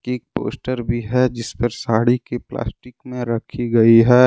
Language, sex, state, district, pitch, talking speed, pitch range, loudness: Hindi, male, Jharkhand, Deoghar, 120 Hz, 180 wpm, 115-125 Hz, -19 LUFS